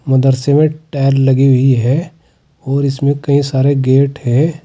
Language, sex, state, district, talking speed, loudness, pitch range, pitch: Hindi, male, Uttar Pradesh, Saharanpur, 155 wpm, -13 LUFS, 135-145 Hz, 140 Hz